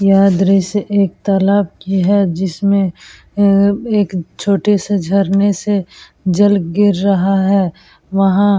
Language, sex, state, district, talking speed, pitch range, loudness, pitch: Hindi, female, Uttar Pradesh, Etah, 135 wpm, 190-200 Hz, -14 LUFS, 195 Hz